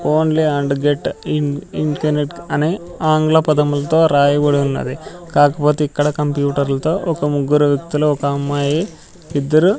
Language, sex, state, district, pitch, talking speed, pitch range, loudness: Telugu, male, Andhra Pradesh, Sri Satya Sai, 150 Hz, 135 wpm, 145-155 Hz, -17 LUFS